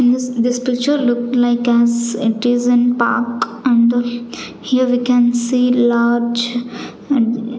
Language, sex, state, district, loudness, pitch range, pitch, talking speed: English, female, Chandigarh, Chandigarh, -16 LUFS, 235-245 Hz, 240 Hz, 160 wpm